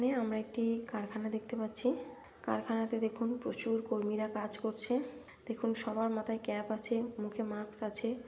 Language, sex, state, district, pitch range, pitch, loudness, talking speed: Bengali, female, West Bengal, Malda, 220-230 Hz, 225 Hz, -36 LUFS, 150 wpm